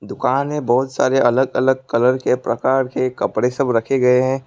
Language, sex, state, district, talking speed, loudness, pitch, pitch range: Hindi, male, West Bengal, Alipurduar, 200 wpm, -18 LUFS, 130 Hz, 125-135 Hz